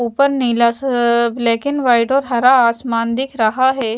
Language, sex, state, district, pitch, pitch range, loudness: Hindi, female, Chhattisgarh, Raipur, 240 Hz, 235-260 Hz, -15 LUFS